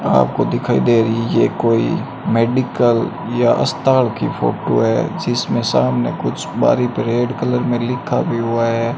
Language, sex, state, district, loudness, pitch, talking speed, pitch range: Hindi, male, Rajasthan, Bikaner, -17 LUFS, 115 Hz, 160 wpm, 115-125 Hz